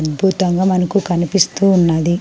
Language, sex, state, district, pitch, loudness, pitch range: Telugu, female, Andhra Pradesh, Sri Satya Sai, 180 Hz, -15 LUFS, 170-195 Hz